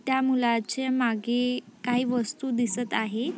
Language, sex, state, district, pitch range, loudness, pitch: Marathi, female, Maharashtra, Nagpur, 235-250 Hz, -27 LUFS, 245 Hz